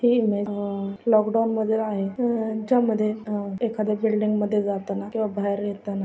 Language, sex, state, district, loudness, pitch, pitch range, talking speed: Marathi, female, Maharashtra, Sindhudurg, -24 LUFS, 215 Hz, 205-220 Hz, 150 wpm